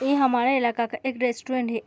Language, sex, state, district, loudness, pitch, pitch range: Hindi, female, Uttar Pradesh, Muzaffarnagar, -24 LUFS, 250 Hz, 235-265 Hz